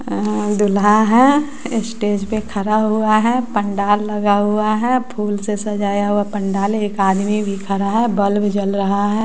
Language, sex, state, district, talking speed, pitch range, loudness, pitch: Hindi, female, Bihar, West Champaran, 170 wpm, 205-215 Hz, -17 LUFS, 210 Hz